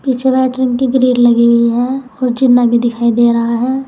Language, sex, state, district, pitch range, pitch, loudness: Hindi, female, Uttar Pradesh, Saharanpur, 235-260 Hz, 250 Hz, -12 LUFS